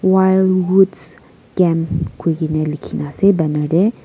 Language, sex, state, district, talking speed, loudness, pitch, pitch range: Nagamese, female, Nagaland, Kohima, 120 wpm, -16 LUFS, 175 Hz, 155-190 Hz